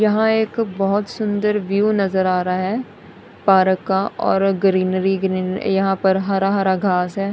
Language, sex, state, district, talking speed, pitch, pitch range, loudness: Hindi, female, Punjab, Kapurthala, 165 wpm, 195 Hz, 190-205 Hz, -18 LUFS